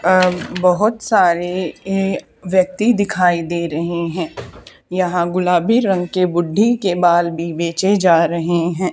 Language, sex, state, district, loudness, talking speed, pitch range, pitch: Hindi, male, Haryana, Charkhi Dadri, -17 LUFS, 150 wpm, 170-190 Hz, 180 Hz